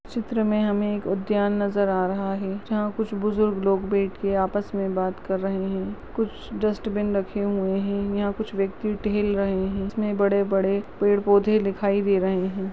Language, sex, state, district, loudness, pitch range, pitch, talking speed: Hindi, female, Maharashtra, Nagpur, -24 LUFS, 195-210 Hz, 200 Hz, 185 wpm